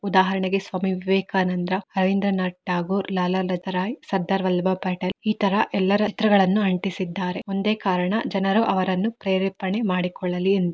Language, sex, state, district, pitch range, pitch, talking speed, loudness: Kannada, female, Karnataka, Mysore, 185-195 Hz, 190 Hz, 135 wpm, -23 LUFS